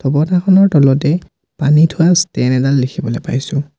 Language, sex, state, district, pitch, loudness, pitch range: Assamese, male, Assam, Sonitpur, 150 Hz, -13 LUFS, 135-175 Hz